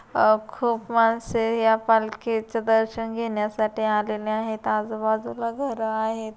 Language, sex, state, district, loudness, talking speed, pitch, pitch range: Marathi, female, Maharashtra, Solapur, -24 LUFS, 115 wpm, 220 Hz, 220-230 Hz